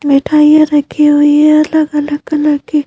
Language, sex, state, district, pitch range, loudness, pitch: Hindi, female, Madhya Pradesh, Bhopal, 295-305 Hz, -10 LUFS, 300 Hz